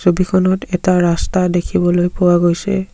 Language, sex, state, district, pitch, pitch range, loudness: Assamese, male, Assam, Sonitpur, 180 Hz, 175-185 Hz, -15 LUFS